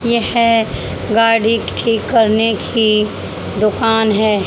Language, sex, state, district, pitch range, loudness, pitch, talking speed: Hindi, female, Haryana, Charkhi Dadri, 215-230 Hz, -14 LUFS, 225 Hz, 95 wpm